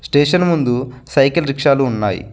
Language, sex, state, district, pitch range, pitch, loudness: Telugu, male, Telangana, Mahabubabad, 125-145 Hz, 135 Hz, -16 LUFS